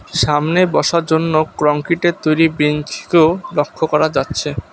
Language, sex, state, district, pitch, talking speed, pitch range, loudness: Bengali, male, West Bengal, Alipurduar, 155 Hz, 115 wpm, 150-165 Hz, -16 LUFS